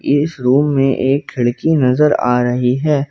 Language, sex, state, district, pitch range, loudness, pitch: Hindi, male, Jharkhand, Ranchi, 125-145 Hz, -15 LUFS, 135 Hz